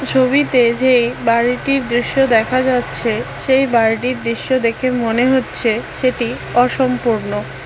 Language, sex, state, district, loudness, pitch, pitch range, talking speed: Bengali, female, West Bengal, Alipurduar, -16 LUFS, 245 Hz, 230-260 Hz, 110 wpm